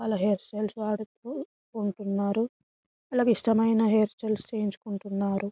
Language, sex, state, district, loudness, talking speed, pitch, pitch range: Telugu, female, Telangana, Karimnagar, -28 LUFS, 85 wpm, 215 Hz, 200-225 Hz